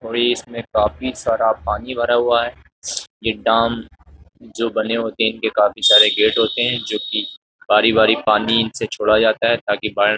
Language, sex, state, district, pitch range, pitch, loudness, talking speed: Hindi, male, Uttar Pradesh, Jyotiba Phule Nagar, 105-115 Hz, 110 Hz, -17 LUFS, 185 wpm